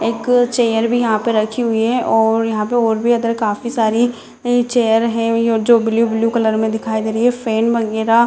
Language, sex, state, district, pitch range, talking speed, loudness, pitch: Hindi, female, Bihar, Jamui, 220-235 Hz, 220 wpm, -16 LUFS, 230 Hz